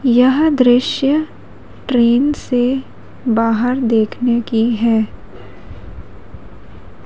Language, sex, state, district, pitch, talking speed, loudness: Hindi, female, Madhya Pradesh, Umaria, 235 Hz, 70 wpm, -15 LUFS